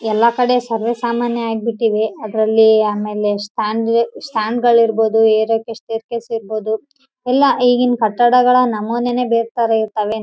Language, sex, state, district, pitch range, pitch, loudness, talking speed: Kannada, female, Karnataka, Raichur, 220-240 Hz, 225 Hz, -16 LUFS, 125 wpm